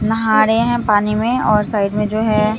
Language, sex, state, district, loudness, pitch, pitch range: Hindi, female, Bihar, Katihar, -16 LUFS, 215 Hz, 210-225 Hz